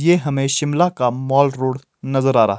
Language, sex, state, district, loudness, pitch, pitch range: Hindi, male, Himachal Pradesh, Shimla, -18 LUFS, 135 Hz, 130-145 Hz